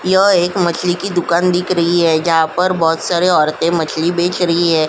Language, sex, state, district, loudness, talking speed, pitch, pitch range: Hindi, female, Uttar Pradesh, Jyotiba Phule Nagar, -14 LUFS, 210 wpm, 175 Hz, 165-180 Hz